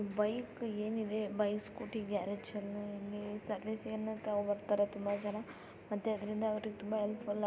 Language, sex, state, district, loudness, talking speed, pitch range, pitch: Kannada, female, Karnataka, Raichur, -39 LUFS, 130 wpm, 205-215 Hz, 210 Hz